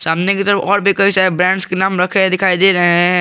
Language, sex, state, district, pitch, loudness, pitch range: Hindi, male, Jharkhand, Garhwa, 190 Hz, -13 LUFS, 180-195 Hz